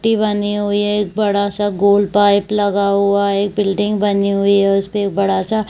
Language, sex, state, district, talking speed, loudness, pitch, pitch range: Hindi, female, Chhattisgarh, Bilaspur, 220 wpm, -15 LUFS, 200 Hz, 200-205 Hz